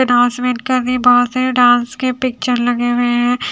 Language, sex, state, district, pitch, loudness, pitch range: Hindi, female, Haryana, Charkhi Dadri, 245 Hz, -14 LUFS, 245-255 Hz